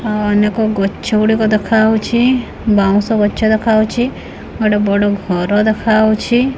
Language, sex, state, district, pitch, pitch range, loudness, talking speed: Odia, female, Odisha, Khordha, 215 Hz, 205-220 Hz, -14 LUFS, 110 wpm